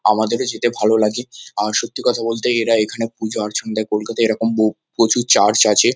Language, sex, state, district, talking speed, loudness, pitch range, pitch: Bengali, male, West Bengal, Kolkata, 180 wpm, -17 LUFS, 110-115 Hz, 110 Hz